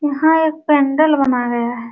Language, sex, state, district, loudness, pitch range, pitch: Hindi, female, Uttar Pradesh, Jalaun, -15 LUFS, 245-310 Hz, 285 Hz